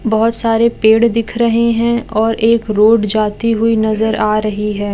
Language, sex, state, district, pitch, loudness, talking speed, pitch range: Hindi, female, Bihar, Jamui, 225 Hz, -13 LUFS, 180 wpm, 215-230 Hz